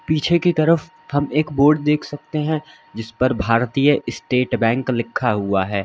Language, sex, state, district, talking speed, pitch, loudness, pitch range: Hindi, male, Uttar Pradesh, Lalitpur, 175 wpm, 145 Hz, -19 LUFS, 115-155 Hz